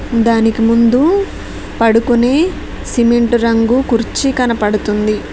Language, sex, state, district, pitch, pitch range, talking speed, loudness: Telugu, female, Telangana, Mahabubabad, 235 Hz, 225-250 Hz, 80 wpm, -13 LUFS